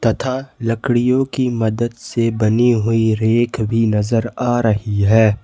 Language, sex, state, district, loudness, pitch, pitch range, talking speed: Hindi, male, Jharkhand, Ranchi, -17 LUFS, 115 Hz, 110-120 Hz, 145 wpm